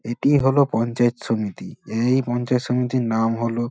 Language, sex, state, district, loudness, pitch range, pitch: Bengali, male, West Bengal, Dakshin Dinajpur, -21 LUFS, 115-125 Hz, 120 Hz